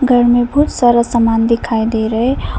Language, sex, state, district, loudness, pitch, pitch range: Hindi, female, Arunachal Pradesh, Papum Pare, -13 LUFS, 235 Hz, 225-245 Hz